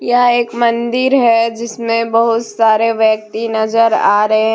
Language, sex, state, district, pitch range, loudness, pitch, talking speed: Hindi, female, Jharkhand, Deoghar, 220-235 Hz, -13 LUFS, 230 Hz, 160 wpm